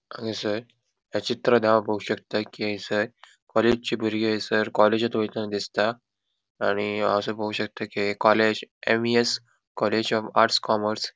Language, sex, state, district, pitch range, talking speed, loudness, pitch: Konkani, male, Goa, North and South Goa, 105-115 Hz, 150 wpm, -24 LUFS, 110 Hz